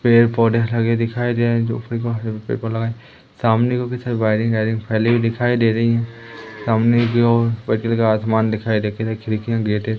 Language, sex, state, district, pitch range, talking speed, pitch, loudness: Hindi, female, Madhya Pradesh, Umaria, 110-115 Hz, 185 wpm, 115 Hz, -19 LUFS